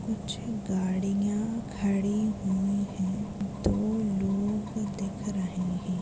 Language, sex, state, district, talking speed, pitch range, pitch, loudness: Hindi, female, Maharashtra, Dhule, 100 wpm, 190-210 Hz, 200 Hz, -30 LUFS